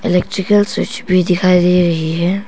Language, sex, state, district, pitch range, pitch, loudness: Hindi, female, Arunachal Pradesh, Papum Pare, 175-190 Hz, 180 Hz, -14 LUFS